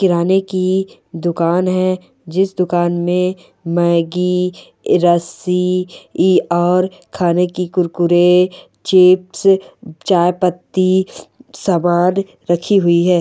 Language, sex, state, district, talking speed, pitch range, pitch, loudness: Hindi, female, Bihar, Bhagalpur, 90 wpm, 175-185 Hz, 180 Hz, -15 LUFS